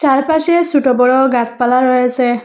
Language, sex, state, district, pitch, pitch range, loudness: Bengali, female, Assam, Hailakandi, 255 Hz, 250-285 Hz, -12 LUFS